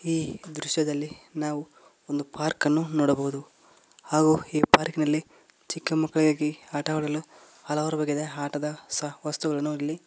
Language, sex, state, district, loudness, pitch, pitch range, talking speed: Kannada, male, Karnataka, Koppal, -27 LUFS, 150 Hz, 150-155 Hz, 120 wpm